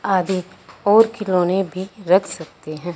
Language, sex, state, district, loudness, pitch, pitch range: Hindi, female, Punjab, Fazilka, -19 LUFS, 185 Hz, 175-195 Hz